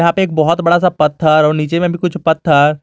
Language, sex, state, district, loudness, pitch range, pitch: Hindi, male, Jharkhand, Garhwa, -13 LUFS, 155-175 Hz, 165 Hz